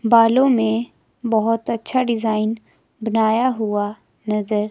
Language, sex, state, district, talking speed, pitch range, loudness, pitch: Hindi, female, Himachal Pradesh, Shimla, 115 wpm, 215-235 Hz, -19 LUFS, 225 Hz